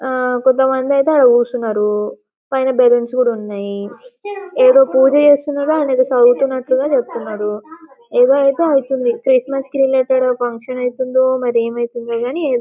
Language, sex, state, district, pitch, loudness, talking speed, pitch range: Telugu, female, Telangana, Karimnagar, 260 Hz, -15 LUFS, 120 wpm, 240-275 Hz